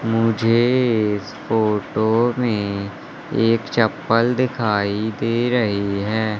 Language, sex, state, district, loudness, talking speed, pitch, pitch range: Hindi, male, Madhya Pradesh, Katni, -20 LUFS, 95 wpm, 115 Hz, 105-120 Hz